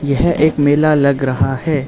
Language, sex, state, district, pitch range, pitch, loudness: Hindi, male, Arunachal Pradesh, Lower Dibang Valley, 135-155 Hz, 145 Hz, -14 LUFS